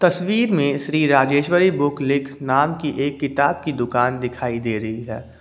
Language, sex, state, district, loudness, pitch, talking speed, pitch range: Hindi, male, Jharkhand, Ranchi, -20 LUFS, 140 Hz, 155 wpm, 125-150 Hz